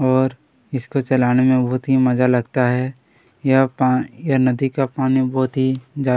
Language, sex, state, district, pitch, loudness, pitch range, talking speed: Hindi, male, Chhattisgarh, Kabirdham, 130 Hz, -18 LUFS, 125-135 Hz, 195 wpm